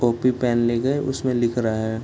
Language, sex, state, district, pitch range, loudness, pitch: Hindi, male, Bihar, Gopalganj, 120-130 Hz, -22 LUFS, 120 Hz